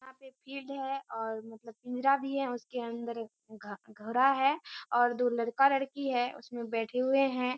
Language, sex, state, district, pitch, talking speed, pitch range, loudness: Hindi, female, Bihar, Kishanganj, 250 Hz, 165 wpm, 230-270 Hz, -31 LUFS